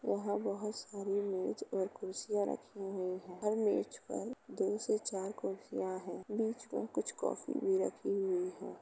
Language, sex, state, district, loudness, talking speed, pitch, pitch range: Hindi, female, Uttar Pradesh, Jalaun, -38 LUFS, 170 wpm, 205 Hz, 195-220 Hz